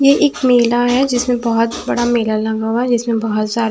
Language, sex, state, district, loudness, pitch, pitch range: Hindi, female, Maharashtra, Washim, -15 LUFS, 235 Hz, 225-245 Hz